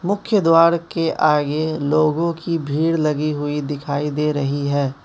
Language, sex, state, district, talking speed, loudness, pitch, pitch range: Hindi, male, Manipur, Imphal West, 155 wpm, -19 LUFS, 150 Hz, 145-165 Hz